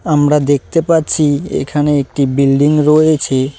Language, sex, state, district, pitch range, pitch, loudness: Bengali, male, West Bengal, Cooch Behar, 140-150 Hz, 145 Hz, -13 LUFS